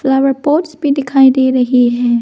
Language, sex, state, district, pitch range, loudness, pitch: Hindi, female, Arunachal Pradesh, Lower Dibang Valley, 250-280 Hz, -12 LUFS, 265 Hz